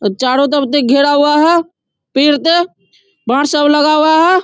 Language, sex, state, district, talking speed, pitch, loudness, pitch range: Hindi, male, Bihar, Darbhanga, 175 wpm, 295 Hz, -11 LUFS, 280-330 Hz